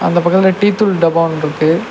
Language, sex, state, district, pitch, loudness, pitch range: Tamil, male, Tamil Nadu, Nilgiris, 175 Hz, -13 LUFS, 165-195 Hz